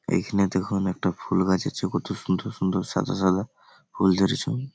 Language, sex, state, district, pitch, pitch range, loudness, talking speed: Bengali, male, West Bengal, Malda, 95 Hz, 95-100 Hz, -25 LUFS, 150 wpm